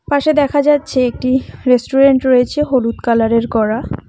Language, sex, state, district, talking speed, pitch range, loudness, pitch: Bengali, female, West Bengal, Cooch Behar, 130 wpm, 235-285 Hz, -14 LUFS, 255 Hz